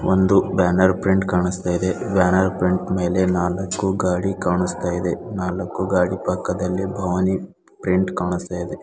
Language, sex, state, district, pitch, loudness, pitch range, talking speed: Kannada, male, Karnataka, Bidar, 90 Hz, -21 LUFS, 90-95 Hz, 130 wpm